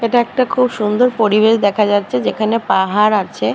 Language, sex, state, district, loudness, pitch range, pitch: Bengali, female, West Bengal, Purulia, -14 LUFS, 205-230 Hz, 215 Hz